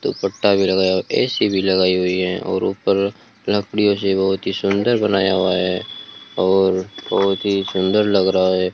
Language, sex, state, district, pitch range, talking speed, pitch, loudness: Hindi, male, Rajasthan, Bikaner, 95-100 Hz, 185 wpm, 95 Hz, -18 LUFS